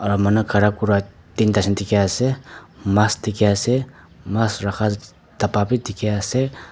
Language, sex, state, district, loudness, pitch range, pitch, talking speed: Nagamese, male, Nagaland, Dimapur, -20 LUFS, 100-110 Hz, 105 Hz, 150 wpm